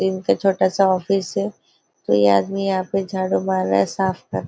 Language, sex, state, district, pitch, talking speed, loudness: Hindi, female, Maharashtra, Nagpur, 190 Hz, 215 wpm, -20 LUFS